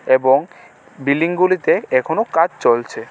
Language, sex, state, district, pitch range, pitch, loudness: Bengali, male, Tripura, West Tripura, 130-175 Hz, 140 Hz, -17 LUFS